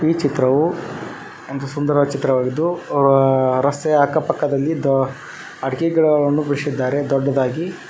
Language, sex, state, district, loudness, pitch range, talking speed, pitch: Kannada, male, Karnataka, Koppal, -18 LUFS, 135-155 Hz, 105 wpm, 145 Hz